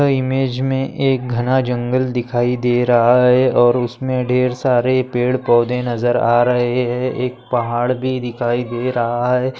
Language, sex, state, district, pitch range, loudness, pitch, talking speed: Hindi, male, Maharashtra, Aurangabad, 120-130 Hz, -17 LUFS, 125 Hz, 160 wpm